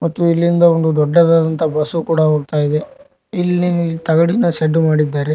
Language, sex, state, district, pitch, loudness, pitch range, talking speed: Kannada, male, Karnataka, Koppal, 165 Hz, -15 LUFS, 155-170 Hz, 125 wpm